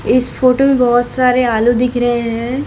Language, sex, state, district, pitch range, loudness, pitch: Hindi, female, Chhattisgarh, Raipur, 240-255 Hz, -13 LUFS, 245 Hz